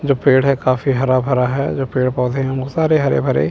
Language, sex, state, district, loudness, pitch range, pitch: Hindi, male, Chandigarh, Chandigarh, -16 LUFS, 130-140 Hz, 135 Hz